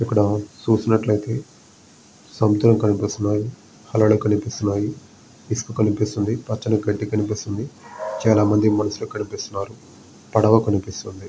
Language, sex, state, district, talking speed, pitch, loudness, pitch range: Telugu, male, Andhra Pradesh, Visakhapatnam, 90 wpm, 105 Hz, -21 LUFS, 105-110 Hz